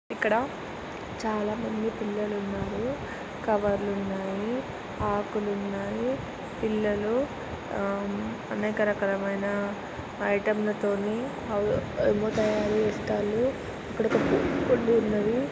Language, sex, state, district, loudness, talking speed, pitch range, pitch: Telugu, female, Andhra Pradesh, Srikakulam, -28 LUFS, 75 wpm, 200-215 Hz, 210 Hz